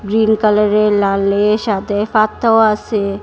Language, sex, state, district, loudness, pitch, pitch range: Bengali, female, Assam, Hailakandi, -14 LUFS, 210 Hz, 205-215 Hz